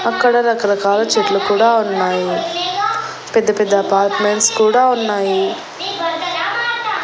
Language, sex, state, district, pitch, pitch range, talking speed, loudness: Telugu, female, Andhra Pradesh, Annamaya, 225 Hz, 205-340 Hz, 75 wpm, -15 LUFS